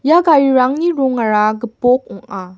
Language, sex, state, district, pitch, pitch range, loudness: Garo, female, Meghalaya, West Garo Hills, 250 Hz, 215-275 Hz, -14 LUFS